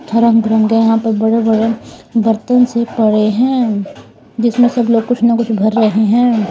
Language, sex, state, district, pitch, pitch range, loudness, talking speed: Hindi, female, Haryana, Rohtak, 225 Hz, 220-235 Hz, -13 LUFS, 175 wpm